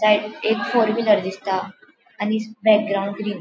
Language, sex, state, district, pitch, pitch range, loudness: Konkani, female, Goa, North and South Goa, 210 Hz, 200-220 Hz, -21 LUFS